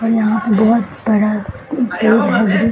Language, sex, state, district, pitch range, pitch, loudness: Hindi, female, Bihar, Gaya, 210-225 Hz, 220 Hz, -15 LUFS